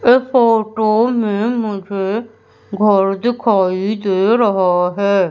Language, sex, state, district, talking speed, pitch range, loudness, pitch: Hindi, female, Madhya Pradesh, Umaria, 100 wpm, 195-230 Hz, -15 LUFS, 210 Hz